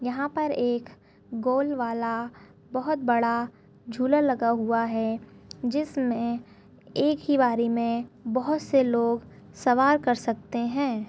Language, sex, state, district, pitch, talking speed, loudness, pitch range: Hindi, female, Chhattisgarh, Balrampur, 240 Hz, 125 wpm, -26 LUFS, 235-270 Hz